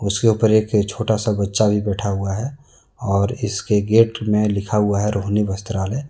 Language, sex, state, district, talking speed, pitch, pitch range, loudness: Hindi, male, Jharkhand, Deoghar, 185 wpm, 105 Hz, 100-110 Hz, -19 LUFS